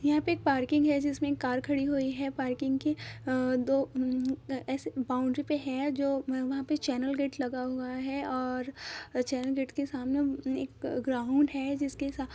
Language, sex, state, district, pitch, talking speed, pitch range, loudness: Hindi, female, Andhra Pradesh, Anantapur, 270 Hz, 180 wpm, 260-280 Hz, -31 LUFS